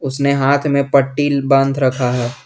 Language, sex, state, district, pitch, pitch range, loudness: Hindi, male, Jharkhand, Garhwa, 140 Hz, 135-140 Hz, -15 LUFS